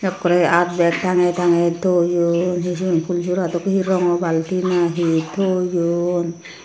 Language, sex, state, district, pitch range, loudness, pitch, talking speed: Chakma, female, Tripura, Unakoti, 170-180 Hz, -18 LUFS, 175 Hz, 145 wpm